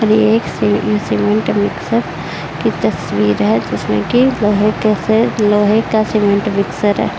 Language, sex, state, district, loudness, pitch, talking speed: Hindi, female, Uttar Pradesh, Varanasi, -15 LUFS, 200 Hz, 135 wpm